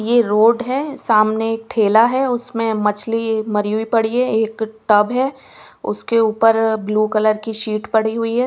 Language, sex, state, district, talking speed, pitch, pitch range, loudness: Hindi, female, Bihar, West Champaran, 170 wpm, 225 Hz, 215-235 Hz, -17 LUFS